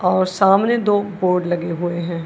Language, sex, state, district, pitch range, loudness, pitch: Hindi, female, Punjab, Kapurthala, 175-195 Hz, -18 LUFS, 180 Hz